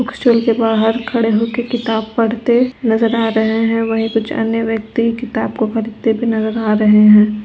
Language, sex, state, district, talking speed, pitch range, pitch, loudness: Hindi, female, Uttar Pradesh, Etah, 195 wpm, 220-230 Hz, 225 Hz, -15 LUFS